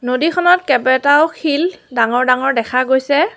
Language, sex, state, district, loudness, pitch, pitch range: Assamese, female, Assam, Sonitpur, -14 LUFS, 270 Hz, 255-320 Hz